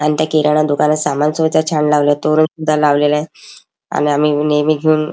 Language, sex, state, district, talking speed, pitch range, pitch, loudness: Marathi, male, Maharashtra, Chandrapur, 175 wpm, 150-155 Hz, 150 Hz, -14 LUFS